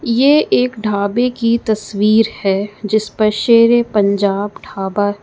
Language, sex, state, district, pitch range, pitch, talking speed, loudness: Hindi, female, Uttar Pradesh, Lucknow, 205-235 Hz, 215 Hz, 125 wpm, -15 LUFS